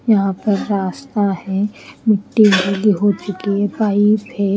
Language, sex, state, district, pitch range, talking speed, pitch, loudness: Hindi, female, Haryana, Rohtak, 195-215 Hz, 145 wpm, 205 Hz, -17 LUFS